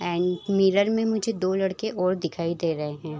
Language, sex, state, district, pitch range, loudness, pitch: Hindi, female, Chhattisgarh, Raigarh, 170-200 Hz, -25 LUFS, 185 Hz